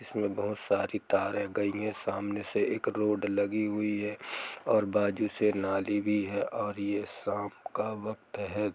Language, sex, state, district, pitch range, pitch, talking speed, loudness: Hindi, male, Jharkhand, Jamtara, 100-105 Hz, 105 Hz, 180 wpm, -31 LUFS